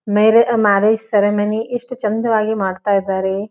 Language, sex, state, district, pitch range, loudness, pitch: Kannada, female, Karnataka, Dharwad, 200-220 Hz, -16 LUFS, 210 Hz